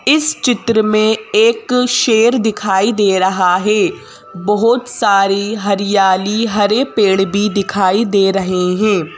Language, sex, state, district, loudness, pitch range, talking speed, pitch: Hindi, female, Madhya Pradesh, Bhopal, -13 LUFS, 195-230 Hz, 125 wpm, 210 Hz